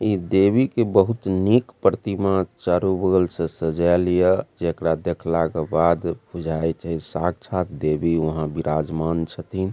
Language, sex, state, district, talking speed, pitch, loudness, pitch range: Maithili, male, Bihar, Supaul, 135 wpm, 90 Hz, -22 LUFS, 80-95 Hz